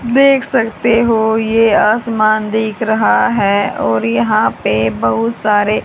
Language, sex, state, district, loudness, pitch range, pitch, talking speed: Hindi, female, Haryana, Charkhi Dadri, -13 LUFS, 200-230 Hz, 220 Hz, 135 wpm